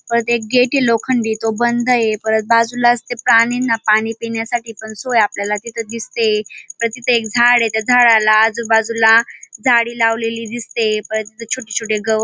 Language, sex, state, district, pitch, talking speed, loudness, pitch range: Marathi, female, Maharashtra, Dhule, 230 Hz, 175 wpm, -15 LUFS, 220-240 Hz